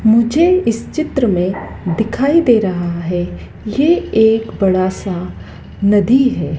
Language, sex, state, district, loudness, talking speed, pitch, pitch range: Hindi, female, Madhya Pradesh, Dhar, -15 LUFS, 125 wpm, 220 Hz, 185-260 Hz